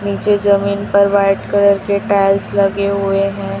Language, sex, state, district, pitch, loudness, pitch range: Hindi, female, Chhattisgarh, Raipur, 200 Hz, -14 LUFS, 195-200 Hz